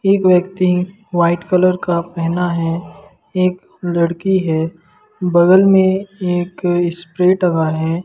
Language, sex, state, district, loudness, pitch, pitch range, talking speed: Hindi, male, Madhya Pradesh, Umaria, -16 LUFS, 180 Hz, 170-185 Hz, 120 wpm